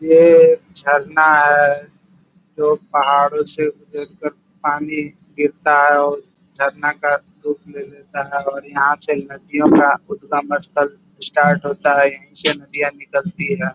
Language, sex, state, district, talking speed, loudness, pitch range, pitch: Hindi, male, Bihar, East Champaran, 145 wpm, -16 LUFS, 145-180 Hz, 150 Hz